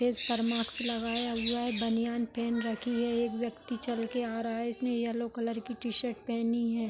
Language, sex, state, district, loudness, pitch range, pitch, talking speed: Hindi, female, Jharkhand, Sahebganj, -32 LUFS, 230-240 Hz, 235 Hz, 225 wpm